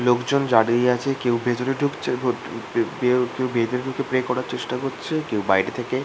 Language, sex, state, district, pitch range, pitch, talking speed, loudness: Bengali, male, West Bengal, Kolkata, 120-130 Hz, 125 Hz, 170 wpm, -23 LUFS